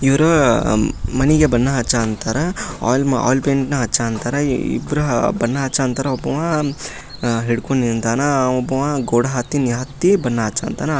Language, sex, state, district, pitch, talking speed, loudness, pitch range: Kannada, male, Karnataka, Dharwad, 130 Hz, 190 wpm, -18 LUFS, 120-145 Hz